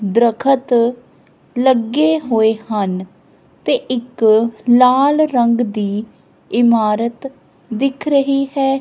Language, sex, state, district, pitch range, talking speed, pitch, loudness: Punjabi, female, Punjab, Kapurthala, 220-270 Hz, 90 wpm, 240 Hz, -15 LUFS